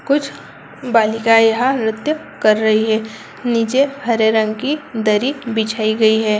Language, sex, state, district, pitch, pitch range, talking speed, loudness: Hindi, female, Bihar, Bhagalpur, 225 Hz, 220-255 Hz, 150 wpm, -16 LUFS